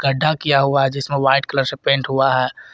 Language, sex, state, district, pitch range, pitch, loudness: Hindi, male, Jharkhand, Garhwa, 135-140 Hz, 135 Hz, -17 LUFS